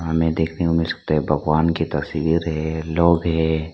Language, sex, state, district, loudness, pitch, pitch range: Hindi, male, Arunachal Pradesh, Lower Dibang Valley, -20 LUFS, 80 Hz, 80-85 Hz